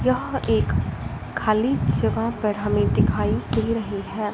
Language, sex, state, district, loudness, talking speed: Hindi, female, Punjab, Fazilka, -23 LUFS, 140 wpm